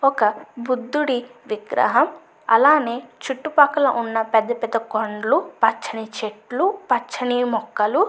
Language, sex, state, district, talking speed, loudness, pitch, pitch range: Telugu, female, Andhra Pradesh, Anantapur, 95 wpm, -21 LUFS, 245 Hz, 225-280 Hz